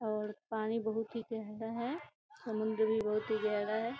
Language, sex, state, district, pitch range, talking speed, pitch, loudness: Hindi, female, Bihar, Gopalganj, 215-225 Hz, 180 wpm, 220 Hz, -36 LUFS